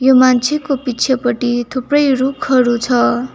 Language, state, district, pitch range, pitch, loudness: Nepali, West Bengal, Darjeeling, 240-265 Hz, 255 Hz, -14 LUFS